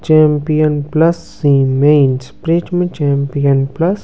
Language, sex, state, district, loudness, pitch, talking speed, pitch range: Hindi, male, Bihar, Kaimur, -14 LUFS, 150 Hz, 105 wpm, 140-165 Hz